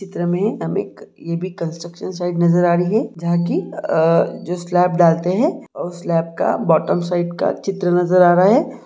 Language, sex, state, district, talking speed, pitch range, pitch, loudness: Hindi, male, Jharkhand, Jamtara, 185 wpm, 170-185 Hz, 175 Hz, -18 LUFS